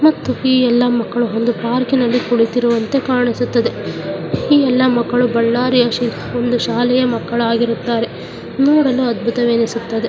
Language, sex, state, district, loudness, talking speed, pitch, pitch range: Kannada, female, Karnataka, Bellary, -16 LUFS, 100 wpm, 240 Hz, 235-250 Hz